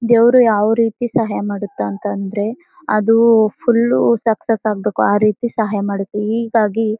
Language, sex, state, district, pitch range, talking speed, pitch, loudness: Kannada, female, Karnataka, Mysore, 205-235 Hz, 135 wpm, 220 Hz, -16 LUFS